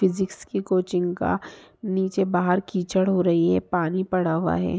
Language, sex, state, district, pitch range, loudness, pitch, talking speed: Hindi, female, Bihar, Sitamarhi, 175-190 Hz, -23 LUFS, 185 Hz, 175 wpm